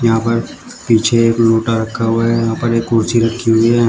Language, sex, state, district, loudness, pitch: Hindi, male, Uttar Pradesh, Shamli, -14 LUFS, 115 Hz